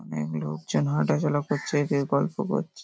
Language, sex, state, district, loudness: Bengali, male, West Bengal, Paschim Medinipur, -26 LUFS